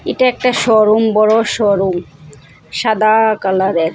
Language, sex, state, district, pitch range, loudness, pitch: Bengali, female, Assam, Hailakandi, 175-220 Hz, -13 LUFS, 215 Hz